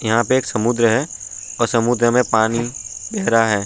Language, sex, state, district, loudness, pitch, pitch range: Hindi, male, Uttar Pradesh, Budaun, -18 LUFS, 115 Hz, 110-120 Hz